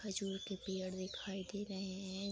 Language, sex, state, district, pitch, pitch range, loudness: Hindi, female, Bihar, Araria, 195 Hz, 190-195 Hz, -43 LUFS